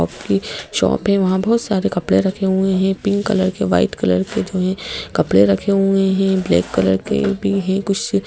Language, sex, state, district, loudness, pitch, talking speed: Hindi, female, Madhya Pradesh, Bhopal, -17 LUFS, 190 Hz, 205 wpm